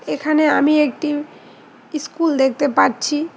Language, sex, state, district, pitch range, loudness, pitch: Bengali, female, West Bengal, Cooch Behar, 290-310 Hz, -17 LUFS, 300 Hz